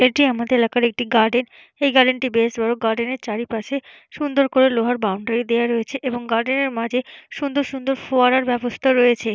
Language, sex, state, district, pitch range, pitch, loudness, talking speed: Bengali, female, West Bengal, Jalpaiguri, 235-265 Hz, 245 Hz, -19 LUFS, 180 wpm